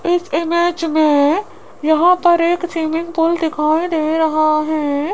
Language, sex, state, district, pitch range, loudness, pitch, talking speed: Hindi, female, Rajasthan, Jaipur, 310-345 Hz, -16 LUFS, 325 Hz, 140 wpm